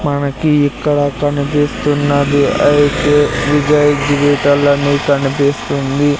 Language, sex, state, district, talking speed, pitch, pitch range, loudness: Telugu, male, Andhra Pradesh, Sri Satya Sai, 75 wpm, 145 Hz, 140-145 Hz, -13 LUFS